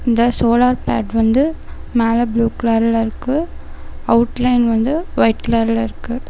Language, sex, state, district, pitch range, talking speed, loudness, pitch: Tamil, female, Tamil Nadu, Namakkal, 230-250 Hz, 125 wpm, -16 LUFS, 235 Hz